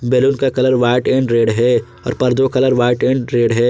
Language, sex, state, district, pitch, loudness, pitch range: Hindi, male, Jharkhand, Ranchi, 125 Hz, -15 LUFS, 120-130 Hz